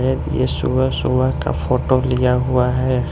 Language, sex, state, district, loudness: Hindi, male, Arunachal Pradesh, Lower Dibang Valley, -18 LUFS